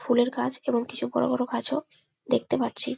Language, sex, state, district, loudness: Bengali, female, West Bengal, Malda, -27 LUFS